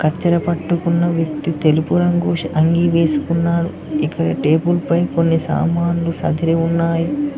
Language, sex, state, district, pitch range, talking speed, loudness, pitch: Telugu, male, Telangana, Mahabubabad, 160-170 Hz, 115 wpm, -17 LUFS, 165 Hz